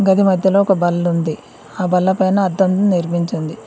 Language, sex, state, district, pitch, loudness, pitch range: Telugu, female, Telangana, Mahabubabad, 185 Hz, -16 LUFS, 175-190 Hz